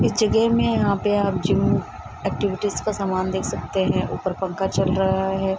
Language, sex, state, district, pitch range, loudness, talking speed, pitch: Hindi, female, Bihar, Sitamarhi, 190-205 Hz, -22 LUFS, 195 wpm, 195 Hz